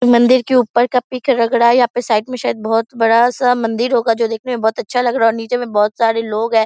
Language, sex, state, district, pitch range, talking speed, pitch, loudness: Hindi, female, Bihar, Purnia, 225-245 Hz, 315 wpm, 240 Hz, -15 LUFS